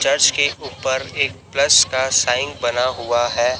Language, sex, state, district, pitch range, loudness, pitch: Hindi, male, Chhattisgarh, Raipur, 120-140 Hz, -17 LUFS, 130 Hz